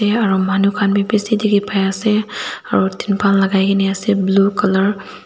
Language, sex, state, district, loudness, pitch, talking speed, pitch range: Nagamese, female, Nagaland, Dimapur, -16 LUFS, 200 Hz, 160 wpm, 195-210 Hz